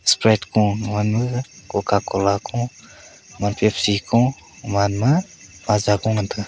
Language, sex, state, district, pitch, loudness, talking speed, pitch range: Wancho, male, Arunachal Pradesh, Longding, 105 Hz, -20 LUFS, 155 wpm, 100-120 Hz